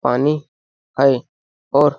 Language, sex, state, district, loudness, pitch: Hindi, male, Chhattisgarh, Balrampur, -18 LUFS, 130 Hz